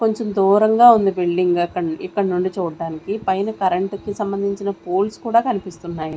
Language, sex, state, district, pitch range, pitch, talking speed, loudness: Telugu, female, Andhra Pradesh, Sri Satya Sai, 180-205 Hz, 195 Hz, 135 wpm, -19 LUFS